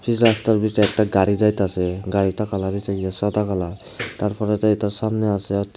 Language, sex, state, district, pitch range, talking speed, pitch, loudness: Bengali, male, Tripura, Unakoti, 100-105 Hz, 175 wpm, 105 Hz, -21 LUFS